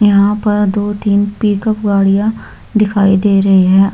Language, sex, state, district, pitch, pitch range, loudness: Hindi, female, Bihar, Samastipur, 205 Hz, 195-210 Hz, -12 LUFS